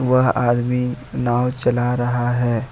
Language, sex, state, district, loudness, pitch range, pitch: Hindi, male, Jharkhand, Ranchi, -19 LUFS, 120-125 Hz, 125 Hz